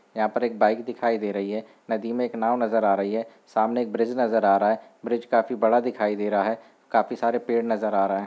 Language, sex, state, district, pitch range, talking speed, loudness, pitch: Hindi, male, Chhattisgarh, Bilaspur, 105-120 Hz, 270 wpm, -24 LUFS, 115 Hz